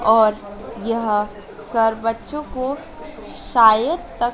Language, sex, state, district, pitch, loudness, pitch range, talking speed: Hindi, female, Madhya Pradesh, Dhar, 225 Hz, -19 LUFS, 215-255 Hz, 95 wpm